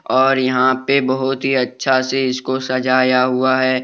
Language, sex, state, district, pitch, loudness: Hindi, male, Jharkhand, Deoghar, 130 Hz, -16 LUFS